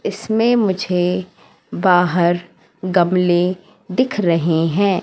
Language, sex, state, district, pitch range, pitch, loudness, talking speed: Hindi, female, Madhya Pradesh, Katni, 175-195 Hz, 180 Hz, -17 LUFS, 85 wpm